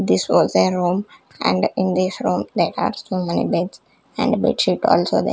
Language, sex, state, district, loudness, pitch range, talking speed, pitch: English, female, Chandigarh, Chandigarh, -19 LUFS, 170-185 Hz, 190 wpm, 185 Hz